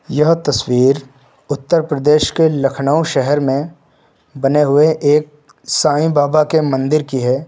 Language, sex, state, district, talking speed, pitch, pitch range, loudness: Hindi, male, Uttar Pradesh, Lucknow, 135 wpm, 145 Hz, 135-155 Hz, -15 LUFS